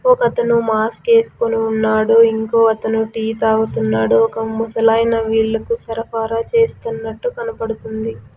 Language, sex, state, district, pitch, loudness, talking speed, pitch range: Telugu, female, Andhra Pradesh, Sri Satya Sai, 225 Hz, -17 LUFS, 105 wpm, 220-230 Hz